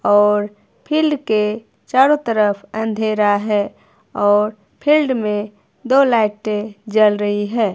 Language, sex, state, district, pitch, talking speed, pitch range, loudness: Hindi, female, Himachal Pradesh, Shimla, 210 Hz, 115 wpm, 205-235 Hz, -17 LUFS